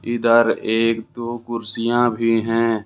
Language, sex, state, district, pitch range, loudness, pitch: Hindi, male, Jharkhand, Ranchi, 115-120 Hz, -19 LUFS, 115 Hz